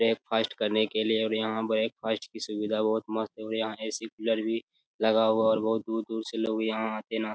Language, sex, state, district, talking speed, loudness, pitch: Hindi, male, Bihar, Jamui, 235 wpm, -29 LUFS, 110 Hz